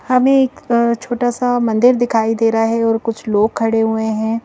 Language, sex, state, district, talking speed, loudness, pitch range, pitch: Hindi, female, Madhya Pradesh, Bhopal, 200 wpm, -15 LUFS, 225-245 Hz, 230 Hz